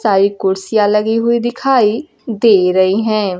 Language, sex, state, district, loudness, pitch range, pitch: Hindi, female, Bihar, Kaimur, -13 LUFS, 195-230 Hz, 210 Hz